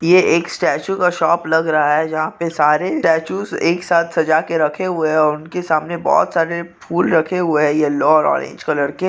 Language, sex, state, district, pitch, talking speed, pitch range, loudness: Hindi, male, Maharashtra, Nagpur, 165 Hz, 205 wpm, 155-170 Hz, -17 LUFS